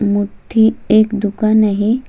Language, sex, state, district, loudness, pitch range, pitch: Marathi, female, Maharashtra, Solapur, -14 LUFS, 205-220 Hz, 215 Hz